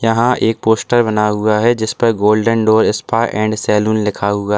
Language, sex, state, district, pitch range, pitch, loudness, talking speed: Hindi, male, Uttar Pradesh, Lalitpur, 105-115 Hz, 110 Hz, -14 LUFS, 195 wpm